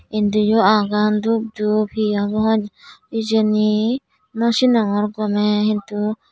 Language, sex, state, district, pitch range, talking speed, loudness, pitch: Chakma, female, Tripura, Dhalai, 210-220 Hz, 105 wpm, -18 LUFS, 215 Hz